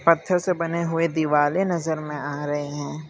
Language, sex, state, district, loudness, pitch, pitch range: Hindi, male, Gujarat, Valsad, -23 LUFS, 160 Hz, 145-170 Hz